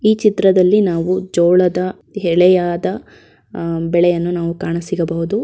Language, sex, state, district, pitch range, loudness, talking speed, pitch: Kannada, female, Karnataka, Shimoga, 170-190 Hz, -16 LUFS, 100 wpm, 180 Hz